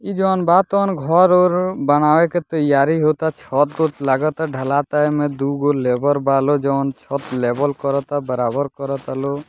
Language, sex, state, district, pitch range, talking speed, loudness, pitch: Bhojpuri, male, Bihar, Muzaffarpur, 140-160 Hz, 160 wpm, -18 LUFS, 145 Hz